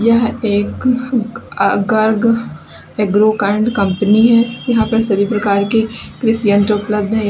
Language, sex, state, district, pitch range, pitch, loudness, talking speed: Hindi, female, Uttar Pradesh, Lalitpur, 205-230 Hz, 220 Hz, -14 LUFS, 125 wpm